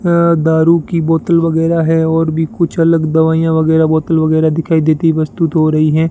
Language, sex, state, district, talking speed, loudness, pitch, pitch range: Hindi, male, Rajasthan, Bikaner, 195 wpm, -12 LUFS, 160 Hz, 160-165 Hz